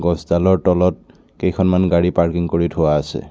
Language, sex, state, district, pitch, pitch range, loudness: Assamese, male, Assam, Kamrup Metropolitan, 85 Hz, 85-90 Hz, -17 LUFS